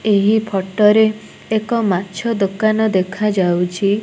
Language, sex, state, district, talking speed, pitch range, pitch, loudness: Odia, female, Odisha, Nuapada, 90 wpm, 195-220 Hz, 210 Hz, -16 LUFS